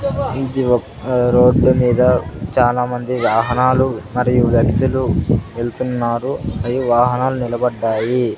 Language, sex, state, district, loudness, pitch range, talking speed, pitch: Telugu, male, Andhra Pradesh, Sri Satya Sai, -16 LUFS, 120-130 Hz, 85 wpm, 125 Hz